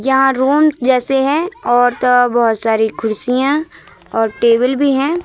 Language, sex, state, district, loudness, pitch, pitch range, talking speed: Hindi, female, Madhya Pradesh, Katni, -14 LUFS, 255 Hz, 235-280 Hz, 150 wpm